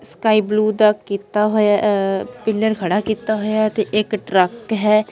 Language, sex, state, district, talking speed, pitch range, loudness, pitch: Punjabi, female, Punjab, Fazilka, 175 wpm, 205-215 Hz, -18 LUFS, 215 Hz